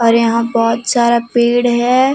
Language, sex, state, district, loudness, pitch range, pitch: Hindi, female, Jharkhand, Deoghar, -13 LUFS, 230-245 Hz, 235 Hz